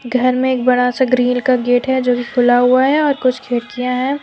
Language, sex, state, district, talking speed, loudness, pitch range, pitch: Hindi, female, Jharkhand, Deoghar, 240 wpm, -15 LUFS, 245-260 Hz, 250 Hz